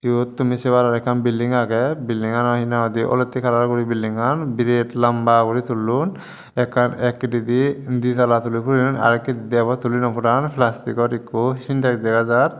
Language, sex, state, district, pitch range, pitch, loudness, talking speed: Chakma, male, Tripura, Dhalai, 115-125 Hz, 120 Hz, -19 LUFS, 145 wpm